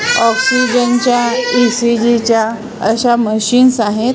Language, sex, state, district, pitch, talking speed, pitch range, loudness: Marathi, female, Maharashtra, Washim, 235 Hz, 100 wpm, 225-245 Hz, -12 LUFS